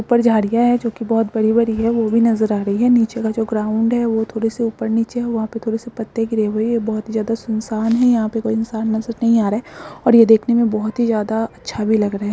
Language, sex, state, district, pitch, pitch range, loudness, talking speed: Hindi, female, Bihar, Supaul, 225 Hz, 220-230 Hz, -18 LUFS, 285 wpm